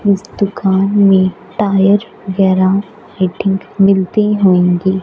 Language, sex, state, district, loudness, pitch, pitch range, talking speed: Hindi, female, Punjab, Fazilka, -13 LUFS, 195 Hz, 190-200 Hz, 95 wpm